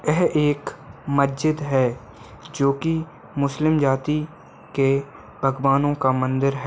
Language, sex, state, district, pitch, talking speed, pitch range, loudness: Hindi, male, Chhattisgarh, Balrampur, 140 Hz, 110 wpm, 135-150 Hz, -22 LUFS